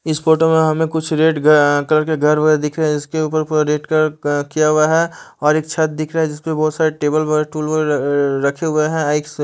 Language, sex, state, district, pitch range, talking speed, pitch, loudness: Hindi, male, Chandigarh, Chandigarh, 150-160 Hz, 235 wpm, 155 Hz, -16 LUFS